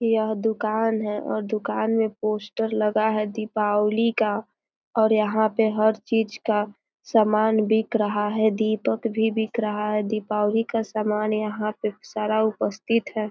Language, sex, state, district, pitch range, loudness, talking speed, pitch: Hindi, female, Bihar, East Champaran, 215-220 Hz, -24 LUFS, 155 wpm, 215 Hz